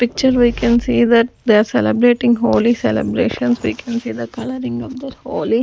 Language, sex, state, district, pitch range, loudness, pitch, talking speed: English, female, Punjab, Fazilka, 230-245 Hz, -16 LUFS, 235 Hz, 190 wpm